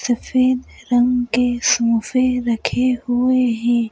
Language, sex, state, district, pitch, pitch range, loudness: Hindi, female, Madhya Pradesh, Bhopal, 245 Hz, 240-255 Hz, -18 LUFS